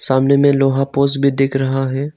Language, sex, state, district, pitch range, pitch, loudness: Hindi, male, Arunachal Pradesh, Longding, 135-140 Hz, 135 Hz, -15 LUFS